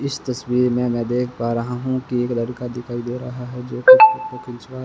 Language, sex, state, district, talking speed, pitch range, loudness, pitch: Hindi, male, Rajasthan, Bikaner, 235 wpm, 120-130 Hz, -19 LUFS, 125 Hz